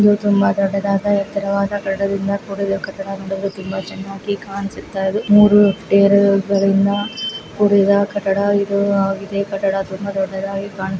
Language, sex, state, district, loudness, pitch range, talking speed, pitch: Kannada, female, Karnataka, Mysore, -17 LUFS, 195-200 Hz, 120 wpm, 200 Hz